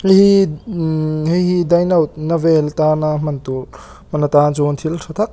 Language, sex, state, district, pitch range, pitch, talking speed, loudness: Mizo, male, Mizoram, Aizawl, 150-175 Hz, 160 Hz, 215 wpm, -16 LUFS